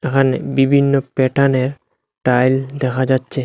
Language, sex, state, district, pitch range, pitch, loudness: Bengali, male, Assam, Hailakandi, 130-140 Hz, 135 Hz, -16 LUFS